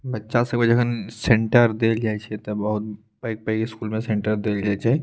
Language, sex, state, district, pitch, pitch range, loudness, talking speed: Maithili, male, Bihar, Purnia, 110 Hz, 105-115 Hz, -22 LUFS, 200 wpm